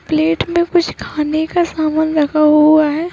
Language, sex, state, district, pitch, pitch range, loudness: Hindi, female, Uttarakhand, Uttarkashi, 315 Hz, 305-335 Hz, -14 LUFS